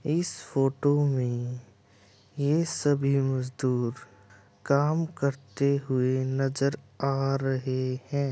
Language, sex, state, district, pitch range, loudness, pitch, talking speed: Hindi, male, Uttar Pradesh, Budaun, 125-140 Hz, -27 LUFS, 135 Hz, 95 wpm